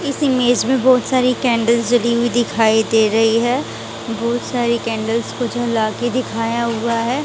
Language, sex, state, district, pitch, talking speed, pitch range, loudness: Hindi, female, Haryana, Rohtak, 235 Hz, 175 wpm, 230-245 Hz, -17 LUFS